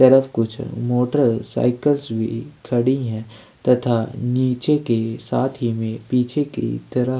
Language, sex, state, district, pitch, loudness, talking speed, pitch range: Hindi, male, Chhattisgarh, Sukma, 125 Hz, -21 LUFS, 140 wpm, 115-130 Hz